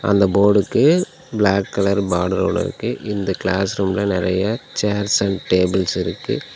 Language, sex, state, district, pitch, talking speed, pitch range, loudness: Tamil, male, Tamil Nadu, Nilgiris, 100 Hz, 130 wpm, 95-105 Hz, -19 LUFS